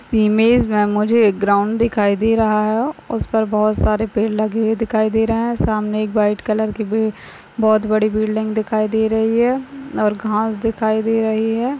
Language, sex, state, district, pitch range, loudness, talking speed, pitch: Hindi, female, Maharashtra, Nagpur, 215-225 Hz, -17 LUFS, 200 wpm, 220 Hz